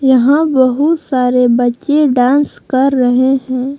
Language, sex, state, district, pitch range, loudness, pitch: Hindi, female, Jharkhand, Palamu, 250-285 Hz, -12 LUFS, 260 Hz